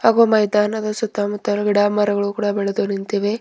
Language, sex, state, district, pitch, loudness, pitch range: Kannada, female, Karnataka, Bidar, 205 Hz, -19 LUFS, 205-215 Hz